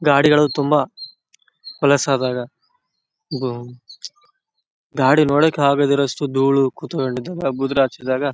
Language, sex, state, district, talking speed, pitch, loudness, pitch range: Kannada, male, Karnataka, Bellary, 80 wpm, 140 Hz, -18 LUFS, 130-150 Hz